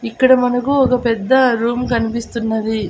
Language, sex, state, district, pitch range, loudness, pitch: Telugu, female, Andhra Pradesh, Annamaya, 230-250 Hz, -16 LUFS, 235 Hz